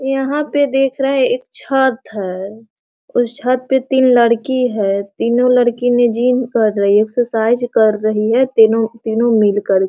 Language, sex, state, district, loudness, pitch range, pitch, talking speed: Hindi, female, Bihar, Sitamarhi, -15 LUFS, 220-260 Hz, 240 Hz, 180 wpm